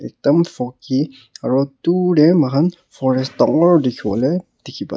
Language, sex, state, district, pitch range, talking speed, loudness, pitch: Nagamese, male, Nagaland, Kohima, 130-170 Hz, 145 wpm, -17 LUFS, 140 Hz